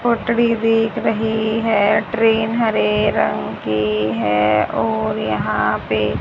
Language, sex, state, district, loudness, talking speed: Hindi, female, Haryana, Rohtak, -18 LUFS, 105 wpm